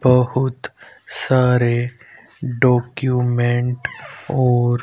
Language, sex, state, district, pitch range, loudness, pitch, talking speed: Hindi, male, Haryana, Rohtak, 120-130 Hz, -18 LUFS, 125 Hz, 50 wpm